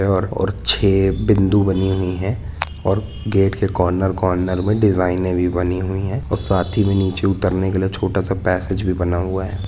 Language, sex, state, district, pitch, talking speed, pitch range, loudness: Hindi, male, Jharkhand, Jamtara, 95 Hz, 200 wpm, 90-100 Hz, -19 LUFS